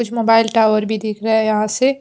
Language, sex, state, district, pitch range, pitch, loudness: Hindi, female, Haryana, Jhajjar, 215-230 Hz, 220 Hz, -16 LUFS